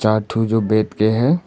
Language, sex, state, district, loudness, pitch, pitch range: Hindi, male, Arunachal Pradesh, Papum Pare, -18 LUFS, 110 Hz, 110-115 Hz